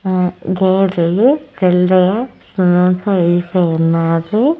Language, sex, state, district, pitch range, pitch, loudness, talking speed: Telugu, female, Andhra Pradesh, Annamaya, 175-200 Hz, 185 Hz, -14 LUFS, 80 wpm